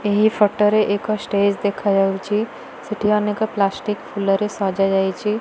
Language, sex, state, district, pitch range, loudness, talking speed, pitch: Odia, female, Odisha, Malkangiri, 195-210 Hz, -19 LUFS, 120 wpm, 205 Hz